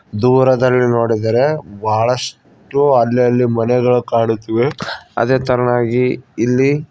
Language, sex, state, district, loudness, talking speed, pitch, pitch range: Kannada, male, Karnataka, Koppal, -15 LUFS, 85 wpm, 125 Hz, 115-130 Hz